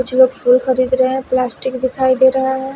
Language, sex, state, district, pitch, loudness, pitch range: Hindi, female, Himachal Pradesh, Shimla, 260 Hz, -15 LUFS, 255-260 Hz